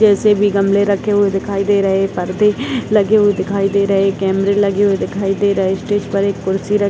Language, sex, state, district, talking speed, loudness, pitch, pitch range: Hindi, female, Bihar, Gopalganj, 235 wpm, -15 LUFS, 200 Hz, 195-205 Hz